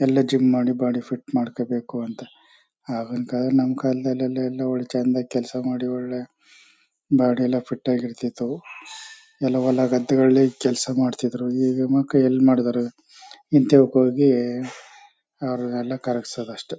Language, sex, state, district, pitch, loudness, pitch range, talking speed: Kannada, male, Karnataka, Chamarajanagar, 130 Hz, -22 LUFS, 125-130 Hz, 130 wpm